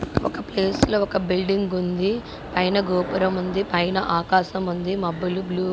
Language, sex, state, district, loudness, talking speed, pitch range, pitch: Telugu, female, Andhra Pradesh, Guntur, -23 LUFS, 135 wpm, 180-195 Hz, 185 Hz